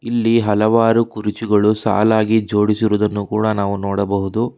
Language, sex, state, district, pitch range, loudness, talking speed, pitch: Kannada, male, Karnataka, Bangalore, 105-115 Hz, -17 LUFS, 105 wpm, 105 Hz